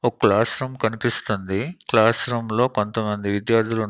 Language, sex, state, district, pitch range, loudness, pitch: Telugu, male, Andhra Pradesh, Annamaya, 105-120 Hz, -20 LUFS, 115 Hz